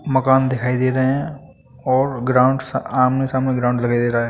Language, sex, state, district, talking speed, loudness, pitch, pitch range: Hindi, male, Uttar Pradesh, Etah, 210 wpm, -18 LUFS, 130 Hz, 125-130 Hz